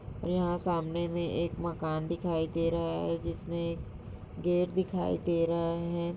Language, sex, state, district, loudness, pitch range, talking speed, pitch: Hindi, female, Chhattisgarh, Sarguja, -32 LUFS, 160-170 Hz, 145 wpm, 170 Hz